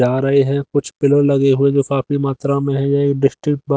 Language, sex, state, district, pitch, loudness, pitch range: Hindi, male, Haryana, Jhajjar, 140 Hz, -16 LUFS, 135-140 Hz